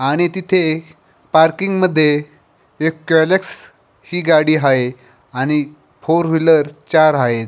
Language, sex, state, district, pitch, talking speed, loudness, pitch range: Marathi, male, Maharashtra, Pune, 155 Hz, 90 wpm, -15 LUFS, 145-165 Hz